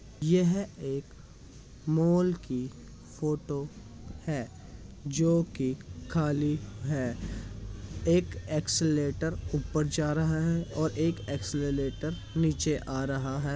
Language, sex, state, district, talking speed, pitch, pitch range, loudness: Hindi, male, Uttar Pradesh, Hamirpur, 100 wpm, 145 Hz, 130-160 Hz, -30 LUFS